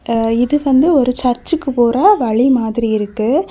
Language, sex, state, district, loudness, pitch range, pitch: Tamil, female, Tamil Nadu, Kanyakumari, -14 LUFS, 230-275 Hz, 250 Hz